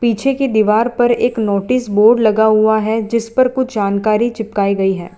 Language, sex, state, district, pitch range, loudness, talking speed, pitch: Hindi, female, Gujarat, Valsad, 210-240 Hz, -14 LUFS, 195 wpm, 220 Hz